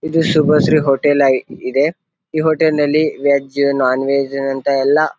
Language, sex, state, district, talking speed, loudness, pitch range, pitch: Kannada, male, Karnataka, Bijapur, 140 wpm, -15 LUFS, 135-155 Hz, 145 Hz